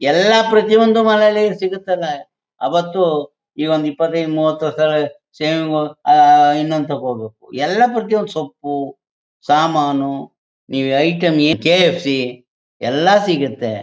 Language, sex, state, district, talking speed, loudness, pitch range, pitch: Kannada, male, Karnataka, Mysore, 110 wpm, -16 LUFS, 145-190 Hz, 155 Hz